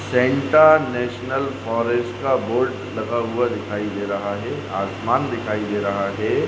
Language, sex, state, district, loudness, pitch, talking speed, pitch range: Hindi, male, Maharashtra, Sindhudurg, -21 LUFS, 120 Hz, 150 wpm, 105-125 Hz